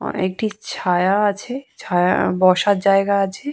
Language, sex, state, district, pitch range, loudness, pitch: Bengali, female, West Bengal, Purulia, 185-210 Hz, -18 LUFS, 200 Hz